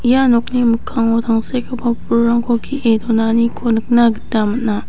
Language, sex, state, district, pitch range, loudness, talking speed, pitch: Garo, female, Meghalaya, West Garo Hills, 225-240 Hz, -16 LUFS, 125 wpm, 235 Hz